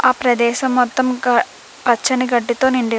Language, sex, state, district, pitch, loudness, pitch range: Telugu, female, Andhra Pradesh, Krishna, 250 Hz, -17 LUFS, 240-255 Hz